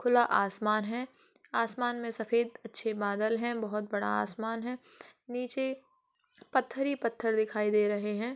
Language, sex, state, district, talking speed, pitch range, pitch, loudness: Hindi, female, Uttar Pradesh, Jalaun, 150 wpm, 215-250 Hz, 230 Hz, -32 LUFS